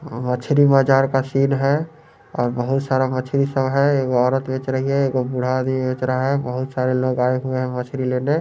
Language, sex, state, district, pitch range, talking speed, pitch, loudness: Hindi, male, Bihar, Muzaffarpur, 130-135 Hz, 215 wpm, 130 Hz, -20 LUFS